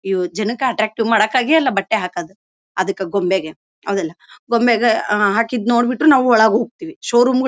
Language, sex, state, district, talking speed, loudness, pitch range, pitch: Kannada, female, Karnataka, Bellary, 145 wpm, -17 LUFS, 195-245 Hz, 225 Hz